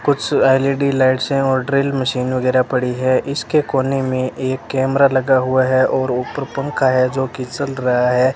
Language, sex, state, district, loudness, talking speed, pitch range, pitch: Hindi, male, Rajasthan, Bikaner, -17 LUFS, 195 wpm, 130-135 Hz, 130 Hz